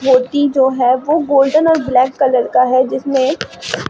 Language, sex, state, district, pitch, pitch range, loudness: Hindi, female, Bihar, Katihar, 265 Hz, 255-285 Hz, -14 LUFS